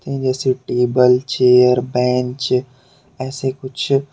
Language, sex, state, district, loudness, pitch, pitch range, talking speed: Hindi, male, Jharkhand, Deoghar, -17 LUFS, 130 Hz, 125-135 Hz, 85 wpm